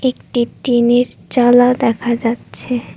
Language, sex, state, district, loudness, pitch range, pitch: Bengali, female, West Bengal, Cooch Behar, -15 LUFS, 235-245 Hz, 245 Hz